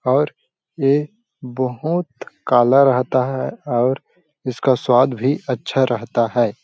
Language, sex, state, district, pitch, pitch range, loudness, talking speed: Hindi, male, Chhattisgarh, Balrampur, 130 Hz, 125-145 Hz, -18 LUFS, 125 wpm